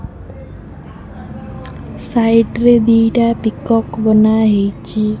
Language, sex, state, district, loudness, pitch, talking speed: Odia, female, Odisha, Khordha, -13 LUFS, 215 Hz, 70 wpm